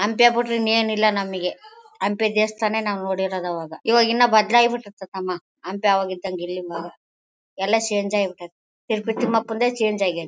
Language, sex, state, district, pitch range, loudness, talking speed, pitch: Kannada, female, Karnataka, Bellary, 185-225 Hz, -21 LUFS, 160 wpm, 205 Hz